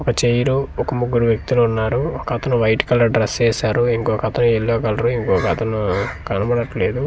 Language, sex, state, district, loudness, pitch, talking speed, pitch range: Telugu, male, Andhra Pradesh, Manyam, -18 LUFS, 115 Hz, 145 wpm, 110-120 Hz